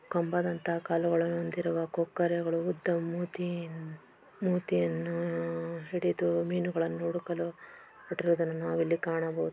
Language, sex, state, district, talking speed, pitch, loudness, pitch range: Kannada, female, Karnataka, Mysore, 80 wpm, 170 Hz, -32 LUFS, 165-175 Hz